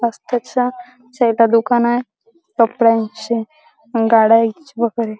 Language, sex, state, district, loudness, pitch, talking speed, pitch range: Marathi, female, Maharashtra, Chandrapur, -16 LUFS, 235 Hz, 70 wpm, 225-250 Hz